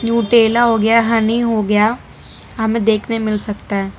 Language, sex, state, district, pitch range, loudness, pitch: Hindi, female, Gujarat, Valsad, 215-230 Hz, -15 LUFS, 225 Hz